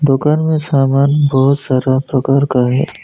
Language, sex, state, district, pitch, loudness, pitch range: Hindi, male, West Bengal, Alipurduar, 135 Hz, -13 LUFS, 130-145 Hz